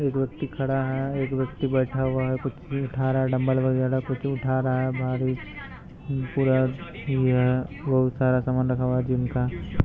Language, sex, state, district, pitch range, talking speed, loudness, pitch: Hindi, male, Bihar, Araria, 130-135 Hz, 190 wpm, -25 LUFS, 130 Hz